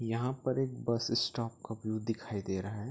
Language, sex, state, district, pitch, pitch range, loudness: Hindi, male, Chhattisgarh, Bilaspur, 115 Hz, 110-120 Hz, -35 LUFS